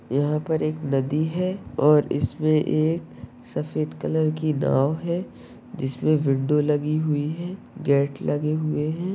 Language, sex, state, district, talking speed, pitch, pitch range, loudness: Hindi, male, Uttar Pradesh, Ghazipur, 145 wpm, 150 Hz, 140-160 Hz, -24 LUFS